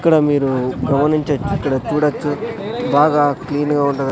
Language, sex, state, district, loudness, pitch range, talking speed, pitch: Telugu, male, Andhra Pradesh, Sri Satya Sai, -17 LUFS, 140-155 Hz, 130 wpm, 145 Hz